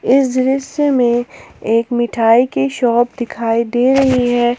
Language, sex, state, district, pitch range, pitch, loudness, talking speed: Hindi, female, Jharkhand, Palamu, 240-265 Hz, 245 Hz, -15 LUFS, 145 wpm